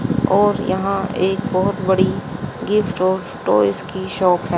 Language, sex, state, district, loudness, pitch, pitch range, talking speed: Hindi, female, Haryana, Jhajjar, -18 LUFS, 190 Hz, 185-195 Hz, 155 wpm